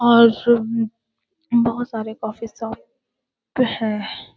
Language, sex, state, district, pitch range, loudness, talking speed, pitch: Hindi, female, Bihar, Jamui, 220-235 Hz, -20 LUFS, 80 wpm, 230 Hz